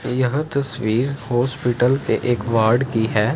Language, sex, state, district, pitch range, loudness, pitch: Hindi, male, Punjab, Fazilka, 115-135 Hz, -20 LUFS, 125 Hz